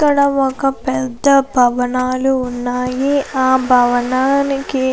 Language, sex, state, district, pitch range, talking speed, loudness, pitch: Telugu, female, Andhra Pradesh, Anantapur, 250-275 Hz, 110 wpm, -15 LUFS, 260 Hz